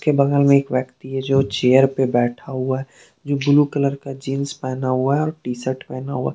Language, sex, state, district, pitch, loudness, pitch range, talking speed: Hindi, male, Jharkhand, Deoghar, 135 Hz, -20 LUFS, 130-140 Hz, 235 wpm